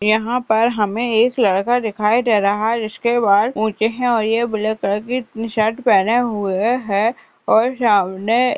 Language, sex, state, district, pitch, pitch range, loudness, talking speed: Hindi, female, Uttar Pradesh, Jalaun, 220 Hz, 210-235 Hz, -17 LUFS, 170 wpm